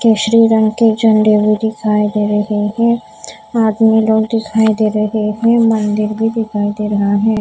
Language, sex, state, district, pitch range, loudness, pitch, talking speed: Hindi, female, Maharashtra, Mumbai Suburban, 210-225 Hz, -13 LUFS, 220 Hz, 170 wpm